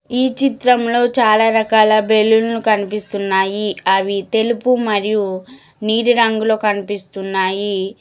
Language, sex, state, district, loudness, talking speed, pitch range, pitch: Telugu, female, Telangana, Mahabubabad, -16 LUFS, 95 wpm, 200-235 Hz, 215 Hz